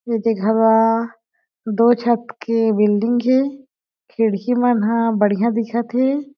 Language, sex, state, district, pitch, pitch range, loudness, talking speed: Chhattisgarhi, female, Chhattisgarh, Jashpur, 230 Hz, 225-245 Hz, -18 LUFS, 120 wpm